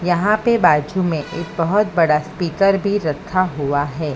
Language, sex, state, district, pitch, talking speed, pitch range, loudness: Hindi, female, Maharashtra, Mumbai Suburban, 175 Hz, 175 wpm, 155-195 Hz, -18 LUFS